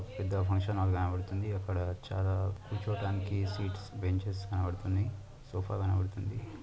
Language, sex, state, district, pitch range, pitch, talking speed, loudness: Telugu, male, Andhra Pradesh, Anantapur, 95-100 Hz, 95 Hz, 110 wpm, -35 LUFS